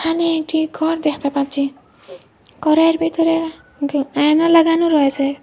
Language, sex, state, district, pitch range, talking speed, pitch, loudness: Bengali, female, Assam, Hailakandi, 285-330 Hz, 110 wpm, 315 Hz, -17 LUFS